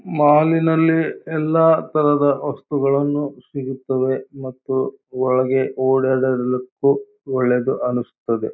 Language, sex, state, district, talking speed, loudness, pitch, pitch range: Kannada, male, Karnataka, Bijapur, 70 wpm, -19 LUFS, 135 Hz, 130-150 Hz